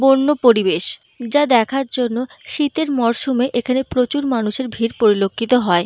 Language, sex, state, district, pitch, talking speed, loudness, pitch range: Bengali, female, Jharkhand, Jamtara, 250 Hz, 135 wpm, -18 LUFS, 230-270 Hz